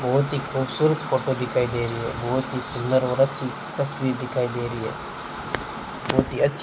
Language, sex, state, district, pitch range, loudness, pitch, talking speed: Hindi, male, Rajasthan, Bikaner, 125-135 Hz, -25 LUFS, 130 Hz, 200 wpm